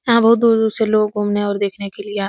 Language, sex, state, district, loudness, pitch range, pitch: Hindi, female, Uttar Pradesh, Etah, -16 LUFS, 205-225 Hz, 210 Hz